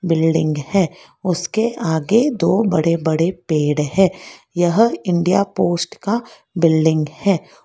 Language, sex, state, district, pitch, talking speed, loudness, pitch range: Hindi, female, Karnataka, Bangalore, 175 Hz, 120 wpm, -18 LUFS, 160-195 Hz